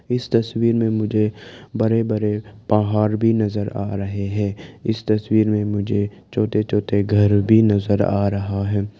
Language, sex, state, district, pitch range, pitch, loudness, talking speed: Hindi, male, Arunachal Pradesh, Lower Dibang Valley, 100-110 Hz, 105 Hz, -20 LUFS, 160 wpm